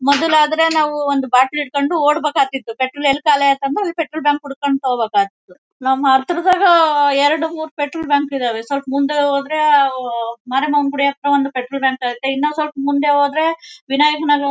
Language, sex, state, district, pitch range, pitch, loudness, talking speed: Kannada, female, Karnataka, Bellary, 270-300 Hz, 285 Hz, -16 LUFS, 170 wpm